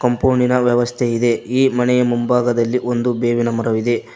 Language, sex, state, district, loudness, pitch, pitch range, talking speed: Kannada, male, Karnataka, Koppal, -17 LUFS, 120 Hz, 120-125 Hz, 130 wpm